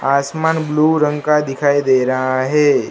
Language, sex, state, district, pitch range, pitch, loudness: Hindi, male, Gujarat, Gandhinagar, 135-150 Hz, 145 Hz, -15 LUFS